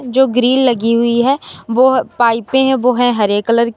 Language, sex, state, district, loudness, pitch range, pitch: Hindi, female, Uttar Pradesh, Lalitpur, -13 LUFS, 230-260 Hz, 245 Hz